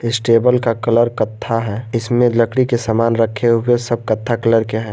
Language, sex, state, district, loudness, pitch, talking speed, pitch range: Hindi, male, Jharkhand, Garhwa, -16 LUFS, 115 Hz, 205 wpm, 115-120 Hz